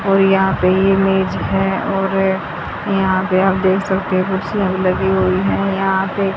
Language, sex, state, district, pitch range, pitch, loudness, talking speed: Hindi, female, Haryana, Rohtak, 190-195 Hz, 190 Hz, -16 LUFS, 180 wpm